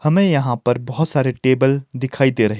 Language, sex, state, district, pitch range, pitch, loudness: Hindi, male, Himachal Pradesh, Shimla, 125-140 Hz, 130 Hz, -18 LUFS